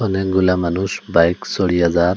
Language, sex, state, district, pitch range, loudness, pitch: Bengali, male, Assam, Hailakandi, 85-95 Hz, -17 LUFS, 90 Hz